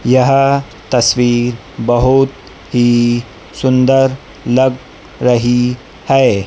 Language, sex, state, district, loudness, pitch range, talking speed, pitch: Hindi, male, Madhya Pradesh, Dhar, -13 LUFS, 120-130 Hz, 75 wpm, 125 Hz